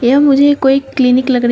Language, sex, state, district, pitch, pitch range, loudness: Hindi, female, Uttar Pradesh, Shamli, 270 Hz, 250-275 Hz, -11 LUFS